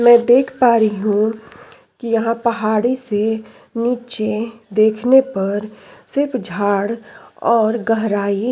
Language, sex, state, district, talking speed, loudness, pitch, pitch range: Hindi, female, Chhattisgarh, Sukma, 120 wpm, -17 LUFS, 225 Hz, 215-240 Hz